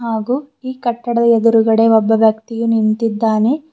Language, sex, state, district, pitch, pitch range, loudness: Kannada, female, Karnataka, Bidar, 230 Hz, 225-240 Hz, -15 LUFS